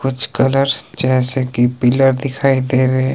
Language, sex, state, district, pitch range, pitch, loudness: Hindi, male, Himachal Pradesh, Shimla, 130-135 Hz, 130 Hz, -15 LUFS